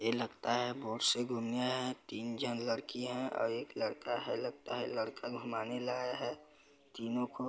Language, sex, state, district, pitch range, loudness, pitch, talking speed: Hindi, male, Chhattisgarh, Balrampur, 115-125 Hz, -38 LUFS, 120 Hz, 190 wpm